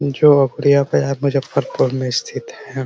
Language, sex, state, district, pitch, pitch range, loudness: Hindi, male, Bihar, Muzaffarpur, 140 Hz, 135-140 Hz, -16 LUFS